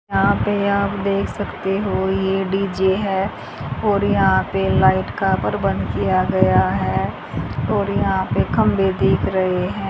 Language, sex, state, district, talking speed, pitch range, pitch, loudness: Hindi, female, Haryana, Jhajjar, 150 wpm, 190-200 Hz, 195 Hz, -19 LUFS